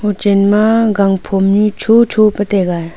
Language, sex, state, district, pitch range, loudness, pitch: Wancho, female, Arunachal Pradesh, Longding, 195-215 Hz, -12 LUFS, 205 Hz